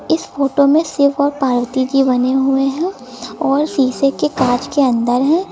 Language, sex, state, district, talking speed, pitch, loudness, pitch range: Hindi, female, Uttar Pradesh, Lucknow, 185 wpm, 275 Hz, -15 LUFS, 260-290 Hz